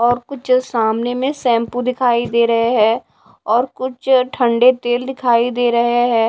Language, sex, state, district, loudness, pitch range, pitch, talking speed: Hindi, female, Odisha, Sambalpur, -16 LUFS, 235-255 Hz, 245 Hz, 160 wpm